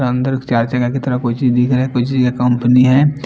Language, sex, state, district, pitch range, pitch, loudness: Hindi, male, Chandigarh, Chandigarh, 125-130 Hz, 125 Hz, -15 LUFS